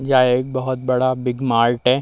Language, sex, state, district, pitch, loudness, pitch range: Hindi, male, Bihar, Vaishali, 130 Hz, -18 LUFS, 125-130 Hz